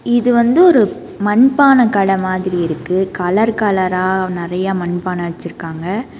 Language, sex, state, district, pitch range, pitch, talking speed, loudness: Tamil, female, Karnataka, Bangalore, 180-230 Hz, 190 Hz, 115 wpm, -15 LUFS